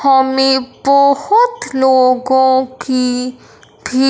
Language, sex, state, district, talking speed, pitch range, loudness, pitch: Hindi, male, Punjab, Fazilka, 75 wpm, 255-275 Hz, -13 LUFS, 265 Hz